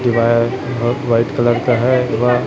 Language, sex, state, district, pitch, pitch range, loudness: Hindi, male, Chhattisgarh, Raipur, 120 Hz, 120-125 Hz, -16 LUFS